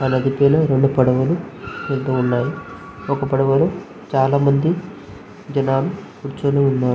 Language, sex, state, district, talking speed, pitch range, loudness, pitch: Telugu, male, Andhra Pradesh, Visakhapatnam, 110 wpm, 135-140 Hz, -18 LUFS, 135 Hz